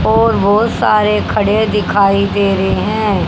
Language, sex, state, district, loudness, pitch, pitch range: Hindi, female, Haryana, Jhajjar, -13 LUFS, 210 Hz, 200-215 Hz